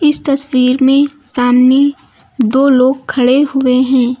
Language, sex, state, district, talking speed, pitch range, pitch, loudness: Hindi, female, Uttar Pradesh, Lucknow, 130 wpm, 255-280 Hz, 265 Hz, -11 LUFS